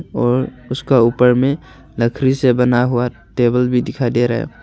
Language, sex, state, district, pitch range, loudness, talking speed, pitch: Hindi, male, Arunachal Pradesh, Longding, 120-130 Hz, -16 LUFS, 180 wpm, 125 Hz